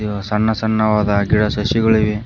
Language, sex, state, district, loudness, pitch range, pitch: Kannada, male, Karnataka, Koppal, -16 LUFS, 105-110 Hz, 105 Hz